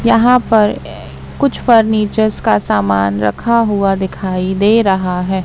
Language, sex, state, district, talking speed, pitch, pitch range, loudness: Hindi, female, Madhya Pradesh, Katni, 130 wpm, 195 Hz, 180-225 Hz, -13 LUFS